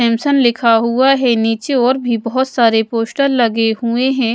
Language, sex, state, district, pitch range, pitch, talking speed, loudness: Hindi, female, Odisha, Malkangiri, 230-260 Hz, 235 Hz, 180 wpm, -14 LUFS